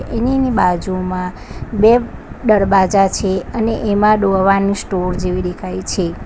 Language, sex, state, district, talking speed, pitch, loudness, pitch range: Gujarati, female, Gujarat, Valsad, 125 wpm, 195 Hz, -16 LUFS, 185-215 Hz